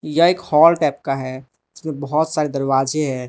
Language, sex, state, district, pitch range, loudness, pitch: Hindi, male, Arunachal Pradesh, Lower Dibang Valley, 135-155 Hz, -18 LUFS, 150 Hz